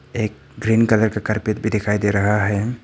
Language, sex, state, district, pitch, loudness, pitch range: Hindi, male, Arunachal Pradesh, Papum Pare, 110 Hz, -19 LUFS, 105-110 Hz